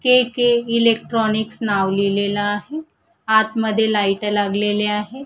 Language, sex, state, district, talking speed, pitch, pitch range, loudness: Marathi, female, Maharashtra, Gondia, 125 wpm, 220 Hz, 205-235 Hz, -18 LUFS